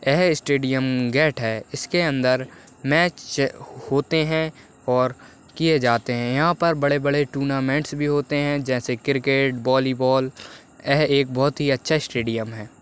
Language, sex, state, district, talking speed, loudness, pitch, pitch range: Hindi, male, Chhattisgarh, Raigarh, 145 wpm, -21 LUFS, 135 Hz, 130-145 Hz